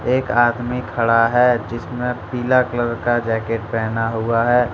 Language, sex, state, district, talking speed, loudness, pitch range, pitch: Hindi, male, Jharkhand, Deoghar, 165 wpm, -19 LUFS, 115-125 Hz, 120 Hz